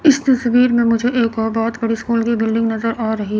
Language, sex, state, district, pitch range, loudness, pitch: Hindi, female, Chandigarh, Chandigarh, 225-240 Hz, -17 LUFS, 230 Hz